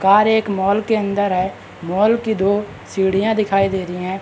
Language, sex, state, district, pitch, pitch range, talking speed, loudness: Hindi, male, Bihar, Madhepura, 200 Hz, 190-215 Hz, 200 wpm, -18 LUFS